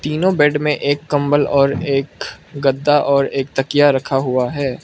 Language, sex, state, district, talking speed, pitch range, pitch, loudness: Hindi, male, Arunachal Pradesh, Lower Dibang Valley, 175 wpm, 135-145 Hz, 140 Hz, -16 LUFS